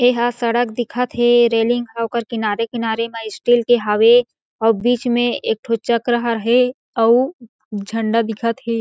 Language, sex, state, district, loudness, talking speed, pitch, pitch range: Chhattisgarhi, female, Chhattisgarh, Jashpur, -17 LUFS, 170 wpm, 235 Hz, 225-240 Hz